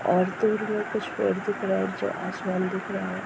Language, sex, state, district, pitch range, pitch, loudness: Hindi, female, Bihar, Darbhanga, 185-210 Hz, 190 Hz, -27 LUFS